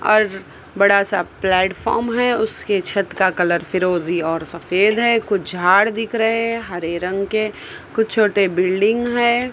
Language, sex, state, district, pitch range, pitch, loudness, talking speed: Hindi, male, Maharashtra, Mumbai Suburban, 180-225 Hz, 200 Hz, -18 LUFS, 160 wpm